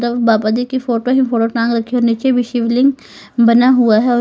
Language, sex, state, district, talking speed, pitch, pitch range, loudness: Hindi, female, Uttar Pradesh, Lalitpur, 185 wpm, 240 Hz, 230-255 Hz, -14 LUFS